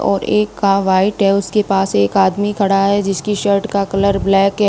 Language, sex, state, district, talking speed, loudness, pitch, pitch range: Hindi, female, Rajasthan, Bikaner, 230 wpm, -15 LUFS, 200 Hz, 195-205 Hz